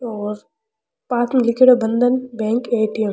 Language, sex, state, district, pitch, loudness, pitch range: Rajasthani, female, Rajasthan, Churu, 240 Hz, -18 LUFS, 220-250 Hz